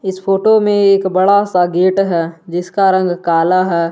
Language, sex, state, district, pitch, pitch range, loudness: Hindi, male, Jharkhand, Garhwa, 185 Hz, 175-195 Hz, -13 LUFS